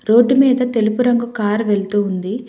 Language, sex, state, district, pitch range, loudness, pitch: Telugu, female, Telangana, Hyderabad, 205-245 Hz, -16 LUFS, 225 Hz